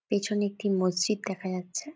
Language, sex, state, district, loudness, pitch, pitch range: Bengali, female, West Bengal, Jhargram, -29 LUFS, 200 Hz, 185-210 Hz